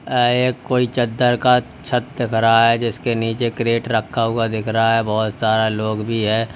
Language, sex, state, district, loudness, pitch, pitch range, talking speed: Hindi, male, Uttar Pradesh, Lalitpur, -18 LUFS, 115 Hz, 110-120 Hz, 200 wpm